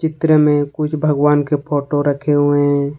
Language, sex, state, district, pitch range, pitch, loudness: Hindi, male, Jharkhand, Ranchi, 145-150 Hz, 145 Hz, -16 LUFS